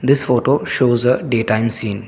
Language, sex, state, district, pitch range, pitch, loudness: English, male, Assam, Kamrup Metropolitan, 115-135 Hz, 125 Hz, -16 LUFS